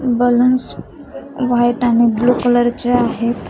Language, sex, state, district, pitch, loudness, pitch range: Marathi, female, Maharashtra, Aurangabad, 245 Hz, -15 LUFS, 240-250 Hz